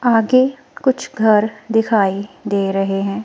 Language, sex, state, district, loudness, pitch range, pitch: Hindi, female, Himachal Pradesh, Shimla, -17 LUFS, 200-245 Hz, 220 Hz